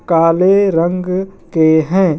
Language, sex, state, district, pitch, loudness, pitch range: Hindi, male, Bihar, Madhepura, 180 Hz, -13 LUFS, 165-190 Hz